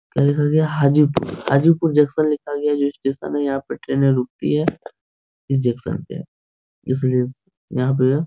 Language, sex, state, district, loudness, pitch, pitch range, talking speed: Hindi, male, Bihar, Supaul, -19 LUFS, 140 Hz, 125-150 Hz, 180 wpm